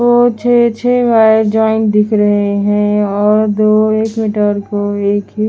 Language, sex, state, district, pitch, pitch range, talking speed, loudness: Hindi, female, Haryana, Charkhi Dadri, 215 Hz, 205-220 Hz, 155 wpm, -12 LUFS